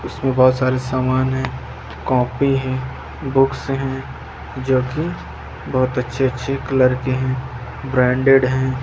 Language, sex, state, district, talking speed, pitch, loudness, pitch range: Hindi, male, Madhya Pradesh, Umaria, 115 wpm, 130 Hz, -19 LUFS, 125-135 Hz